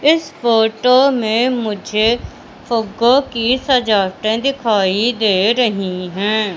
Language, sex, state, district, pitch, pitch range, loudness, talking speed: Hindi, female, Madhya Pradesh, Katni, 225 Hz, 210-250 Hz, -15 LUFS, 100 wpm